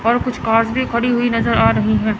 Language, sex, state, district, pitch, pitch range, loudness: Hindi, female, Chandigarh, Chandigarh, 230 Hz, 215-240 Hz, -16 LUFS